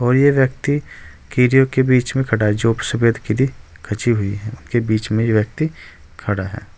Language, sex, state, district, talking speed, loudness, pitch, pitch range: Hindi, male, Uttar Pradesh, Saharanpur, 195 wpm, -18 LUFS, 120 Hz, 110-130 Hz